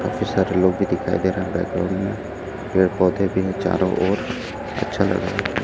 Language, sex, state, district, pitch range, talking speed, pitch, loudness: Hindi, male, Chhattisgarh, Raipur, 90-95 Hz, 200 wpm, 95 Hz, -22 LUFS